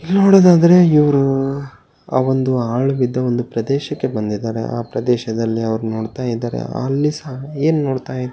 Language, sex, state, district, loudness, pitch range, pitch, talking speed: Kannada, male, Karnataka, Bellary, -17 LUFS, 115-140 Hz, 130 Hz, 135 wpm